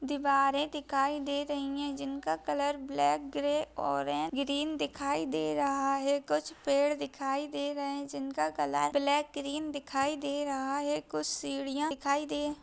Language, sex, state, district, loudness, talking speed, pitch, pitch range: Hindi, female, Bihar, East Champaran, -32 LUFS, 160 wpm, 280 Hz, 275-290 Hz